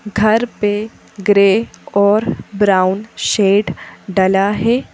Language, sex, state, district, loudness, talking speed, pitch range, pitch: Hindi, female, Madhya Pradesh, Bhopal, -15 LUFS, 95 wpm, 195-215 Hz, 205 Hz